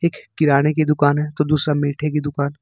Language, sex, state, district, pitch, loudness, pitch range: Hindi, male, Jharkhand, Ranchi, 150 Hz, -19 LUFS, 145-150 Hz